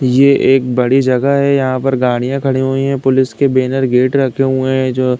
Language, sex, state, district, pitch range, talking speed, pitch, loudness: Hindi, male, Uttar Pradesh, Deoria, 130-135 Hz, 230 wpm, 130 Hz, -13 LUFS